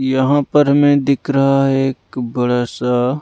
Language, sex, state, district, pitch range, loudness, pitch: Hindi, male, Punjab, Pathankot, 125-140 Hz, -15 LUFS, 135 Hz